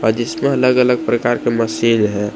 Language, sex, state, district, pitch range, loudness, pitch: Hindi, male, Jharkhand, Palamu, 110-125 Hz, -16 LUFS, 120 Hz